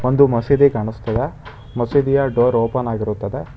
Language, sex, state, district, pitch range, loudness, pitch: Kannada, male, Karnataka, Bangalore, 115-140 Hz, -18 LUFS, 120 Hz